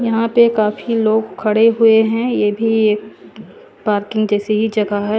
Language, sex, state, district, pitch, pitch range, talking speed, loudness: Hindi, female, Chandigarh, Chandigarh, 220 Hz, 210-225 Hz, 175 wpm, -15 LUFS